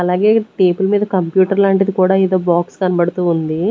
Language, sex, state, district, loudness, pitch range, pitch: Telugu, female, Andhra Pradesh, Sri Satya Sai, -15 LUFS, 180-195 Hz, 185 Hz